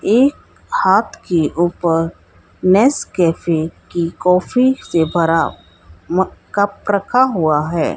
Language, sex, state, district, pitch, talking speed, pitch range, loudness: Hindi, female, Haryana, Jhajjar, 175 Hz, 105 wpm, 165-200 Hz, -16 LUFS